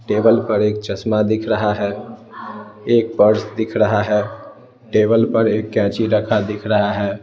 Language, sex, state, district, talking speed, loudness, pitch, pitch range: Hindi, male, Bihar, Patna, 165 wpm, -17 LUFS, 105 Hz, 105-110 Hz